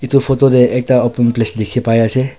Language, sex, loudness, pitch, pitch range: Nagamese, male, -13 LUFS, 125 Hz, 115-130 Hz